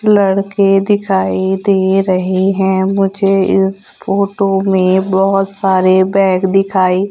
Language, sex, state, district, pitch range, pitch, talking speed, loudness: Hindi, female, Madhya Pradesh, Umaria, 190-195 Hz, 195 Hz, 110 wpm, -13 LUFS